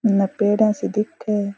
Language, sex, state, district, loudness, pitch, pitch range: Rajasthani, female, Rajasthan, Churu, -20 LUFS, 210 Hz, 200-215 Hz